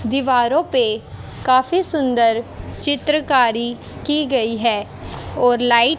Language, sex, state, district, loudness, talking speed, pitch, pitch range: Hindi, female, Haryana, Jhajjar, -18 LUFS, 100 wpm, 255 Hz, 235-300 Hz